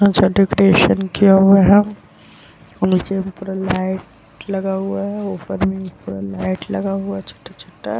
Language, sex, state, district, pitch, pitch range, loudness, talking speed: Hindi, female, Bihar, Vaishali, 190 Hz, 180-195 Hz, -17 LUFS, 150 wpm